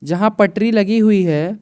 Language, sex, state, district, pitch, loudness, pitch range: Hindi, male, Arunachal Pradesh, Lower Dibang Valley, 205 Hz, -15 LUFS, 180-215 Hz